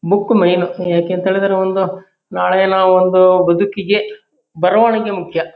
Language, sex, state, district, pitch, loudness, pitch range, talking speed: Kannada, male, Karnataka, Shimoga, 190 Hz, -14 LUFS, 180-195 Hz, 130 wpm